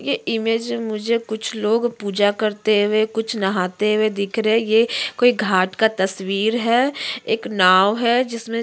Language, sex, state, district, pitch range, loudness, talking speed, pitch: Hindi, female, Uttarakhand, Tehri Garhwal, 205-230 Hz, -19 LUFS, 180 wpm, 220 Hz